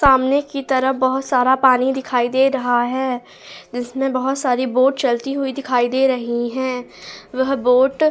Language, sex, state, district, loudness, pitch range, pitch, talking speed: Hindi, female, Goa, North and South Goa, -18 LUFS, 250-270 Hz, 260 Hz, 170 wpm